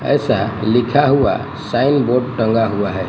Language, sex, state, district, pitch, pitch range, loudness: Hindi, male, Gujarat, Gandhinagar, 120 Hz, 110-140 Hz, -16 LUFS